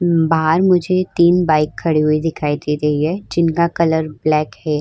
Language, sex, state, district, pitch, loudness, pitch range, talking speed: Hindi, female, Uttar Pradesh, Varanasi, 160 Hz, -16 LUFS, 150-170 Hz, 175 wpm